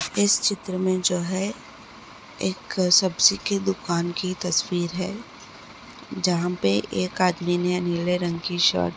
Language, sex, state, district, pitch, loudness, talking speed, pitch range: Hindi, female, Uttar Pradesh, Etah, 180 Hz, -23 LUFS, 145 wpm, 175-190 Hz